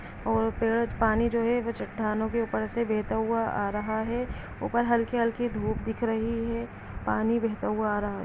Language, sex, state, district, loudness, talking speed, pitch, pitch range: Hindi, female, Chhattisgarh, Balrampur, -28 LUFS, 205 wpm, 225 Hz, 215-235 Hz